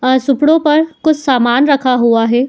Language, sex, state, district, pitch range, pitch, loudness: Hindi, female, Uttar Pradesh, Muzaffarnagar, 250-300 Hz, 275 Hz, -12 LUFS